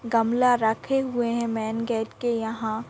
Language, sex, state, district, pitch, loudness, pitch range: Hindi, female, Chhattisgarh, Rajnandgaon, 230 Hz, -25 LUFS, 225-240 Hz